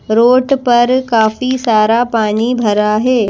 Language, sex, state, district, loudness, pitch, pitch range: Hindi, female, Madhya Pradesh, Bhopal, -12 LUFS, 235 Hz, 220-250 Hz